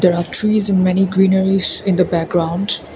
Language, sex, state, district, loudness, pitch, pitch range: English, female, Assam, Kamrup Metropolitan, -15 LUFS, 190 Hz, 175-195 Hz